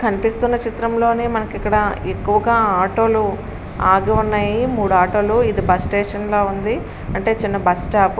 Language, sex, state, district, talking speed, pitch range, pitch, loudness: Telugu, female, Andhra Pradesh, Srikakulam, 170 wpm, 200-225 Hz, 210 Hz, -18 LUFS